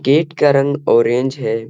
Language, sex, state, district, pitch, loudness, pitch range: Hindi, male, Bihar, Gaya, 135 Hz, -15 LUFS, 120-145 Hz